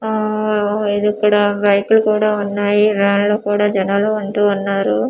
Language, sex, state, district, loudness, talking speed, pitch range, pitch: Telugu, female, Andhra Pradesh, Manyam, -16 LUFS, 130 wpm, 200-210 Hz, 205 Hz